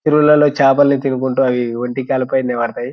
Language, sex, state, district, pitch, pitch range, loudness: Telugu, male, Telangana, Nalgonda, 130 Hz, 125-140 Hz, -15 LUFS